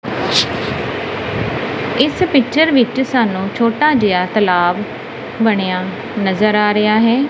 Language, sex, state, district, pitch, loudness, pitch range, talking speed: Punjabi, female, Punjab, Kapurthala, 220 Hz, -15 LUFS, 195-250 Hz, 100 wpm